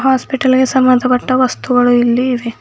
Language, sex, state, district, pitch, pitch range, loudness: Kannada, female, Karnataka, Bidar, 255 Hz, 245-260 Hz, -13 LUFS